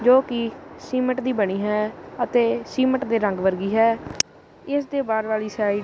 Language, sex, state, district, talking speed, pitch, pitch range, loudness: Punjabi, male, Punjab, Kapurthala, 185 wpm, 230 Hz, 210-255 Hz, -23 LUFS